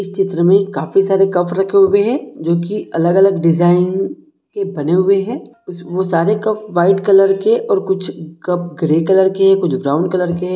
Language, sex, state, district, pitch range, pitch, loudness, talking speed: Hindi, male, Jharkhand, Jamtara, 175-195 Hz, 190 Hz, -15 LUFS, 200 wpm